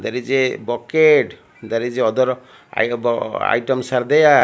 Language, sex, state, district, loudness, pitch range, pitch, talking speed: English, male, Odisha, Malkangiri, -18 LUFS, 120-135 Hz, 125 Hz, 175 wpm